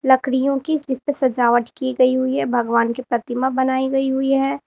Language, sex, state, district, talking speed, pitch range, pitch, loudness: Hindi, female, Uttar Pradesh, Lalitpur, 205 wpm, 245-270 Hz, 260 Hz, -19 LUFS